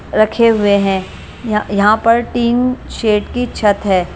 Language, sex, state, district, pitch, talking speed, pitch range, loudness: Hindi, female, Punjab, Kapurthala, 215 Hz, 175 wpm, 205-235 Hz, -14 LUFS